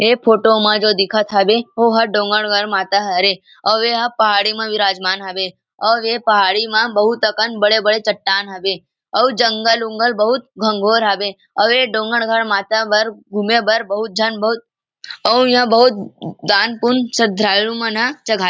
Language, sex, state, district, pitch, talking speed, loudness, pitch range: Chhattisgarhi, male, Chhattisgarh, Rajnandgaon, 220 Hz, 160 wpm, -15 LUFS, 205-230 Hz